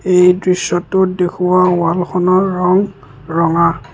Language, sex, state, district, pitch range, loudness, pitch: Assamese, male, Assam, Kamrup Metropolitan, 170-185 Hz, -14 LUFS, 180 Hz